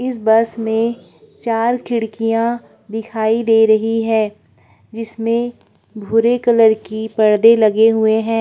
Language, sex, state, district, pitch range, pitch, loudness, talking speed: Hindi, female, Uttar Pradesh, Budaun, 220-230 Hz, 225 Hz, -15 LUFS, 120 wpm